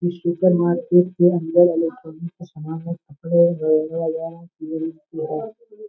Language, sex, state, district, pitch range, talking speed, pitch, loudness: Hindi, male, Bihar, Darbhanga, 160-175 Hz, 110 wpm, 170 Hz, -20 LUFS